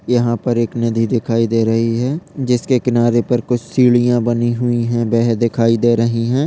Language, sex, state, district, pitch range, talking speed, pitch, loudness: Hindi, male, Chhattisgarh, Rajnandgaon, 115-120 Hz, 195 wpm, 120 Hz, -16 LUFS